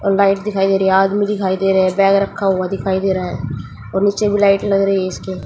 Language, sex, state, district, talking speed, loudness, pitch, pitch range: Hindi, female, Haryana, Jhajjar, 275 wpm, -16 LUFS, 195 Hz, 190-200 Hz